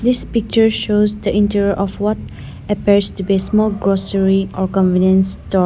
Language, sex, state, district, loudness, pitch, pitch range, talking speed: English, female, Nagaland, Dimapur, -16 LUFS, 200 Hz, 190-210 Hz, 160 wpm